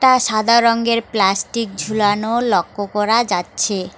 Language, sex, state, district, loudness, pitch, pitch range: Bengali, female, West Bengal, Alipurduar, -17 LUFS, 220 Hz, 205-235 Hz